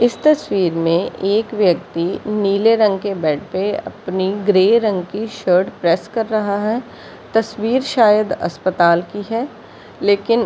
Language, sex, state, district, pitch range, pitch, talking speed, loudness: Hindi, female, Bihar, Jahanabad, 185-225 Hz, 205 Hz, 150 wpm, -17 LUFS